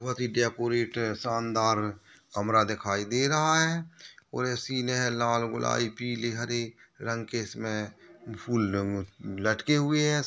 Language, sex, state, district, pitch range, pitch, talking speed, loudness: Hindi, male, Maharashtra, Solapur, 110-125 Hz, 115 Hz, 125 wpm, -29 LUFS